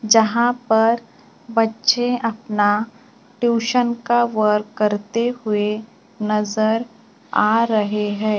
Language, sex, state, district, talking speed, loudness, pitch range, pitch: Hindi, female, Maharashtra, Gondia, 95 wpm, -19 LUFS, 210-235 Hz, 225 Hz